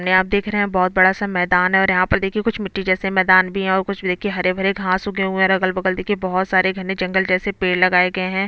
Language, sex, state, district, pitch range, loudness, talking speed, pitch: Hindi, female, Chhattisgarh, Bastar, 185-195 Hz, -18 LUFS, 290 wpm, 190 Hz